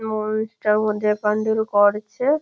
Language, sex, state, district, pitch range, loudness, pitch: Bengali, female, West Bengal, Malda, 210-220 Hz, -21 LUFS, 215 Hz